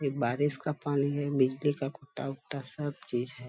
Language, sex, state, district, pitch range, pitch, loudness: Hindi, female, Bihar, Bhagalpur, 130-145 Hz, 140 Hz, -32 LUFS